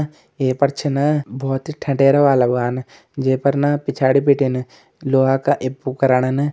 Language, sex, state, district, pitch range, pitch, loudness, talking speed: Garhwali, male, Uttarakhand, Uttarkashi, 130-140 Hz, 135 Hz, -18 LUFS, 165 wpm